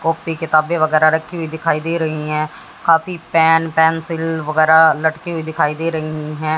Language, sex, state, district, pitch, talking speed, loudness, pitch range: Hindi, female, Haryana, Jhajjar, 160 Hz, 175 wpm, -16 LUFS, 155-165 Hz